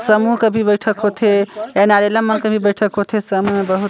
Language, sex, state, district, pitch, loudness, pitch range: Chhattisgarhi, male, Chhattisgarh, Sarguja, 210 Hz, -15 LUFS, 205-215 Hz